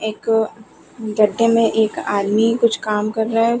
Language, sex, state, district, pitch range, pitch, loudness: Hindi, female, Chhattisgarh, Bilaspur, 215-230 Hz, 220 Hz, -18 LUFS